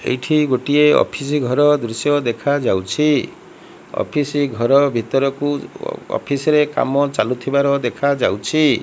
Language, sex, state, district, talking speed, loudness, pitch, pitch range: Odia, female, Odisha, Malkangiri, 95 wpm, -17 LUFS, 140 Hz, 130-145 Hz